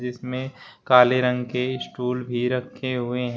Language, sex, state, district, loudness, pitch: Hindi, male, Uttar Pradesh, Shamli, -23 LUFS, 125 Hz